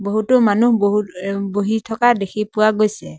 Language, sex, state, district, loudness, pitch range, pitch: Assamese, male, Assam, Sonitpur, -17 LUFS, 200-220 Hz, 210 Hz